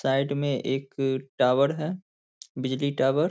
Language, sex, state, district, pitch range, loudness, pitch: Hindi, male, Bihar, Saharsa, 135-140 Hz, -26 LUFS, 135 Hz